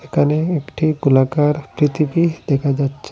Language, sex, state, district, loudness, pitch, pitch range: Bengali, male, Assam, Hailakandi, -17 LUFS, 150 Hz, 140-155 Hz